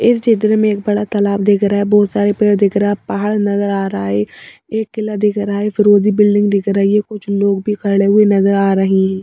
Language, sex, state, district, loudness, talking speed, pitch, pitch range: Hindi, female, Madhya Pradesh, Bhopal, -14 LUFS, 245 wpm, 205 Hz, 200-210 Hz